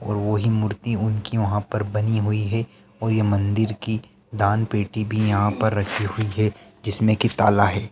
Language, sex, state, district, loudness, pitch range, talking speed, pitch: Hindi, male, Bihar, Lakhisarai, -22 LUFS, 105-110 Hz, 180 wpm, 105 Hz